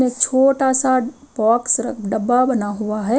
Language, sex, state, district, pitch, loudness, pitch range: Hindi, female, Himachal Pradesh, Shimla, 250 Hz, -17 LUFS, 220-260 Hz